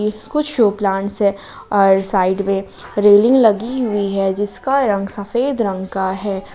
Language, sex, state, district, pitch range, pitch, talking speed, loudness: Hindi, female, Jharkhand, Palamu, 195-220 Hz, 205 Hz, 155 wpm, -17 LUFS